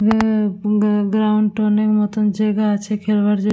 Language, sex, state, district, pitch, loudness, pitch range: Bengali, female, West Bengal, Dakshin Dinajpur, 210 Hz, -17 LUFS, 210-215 Hz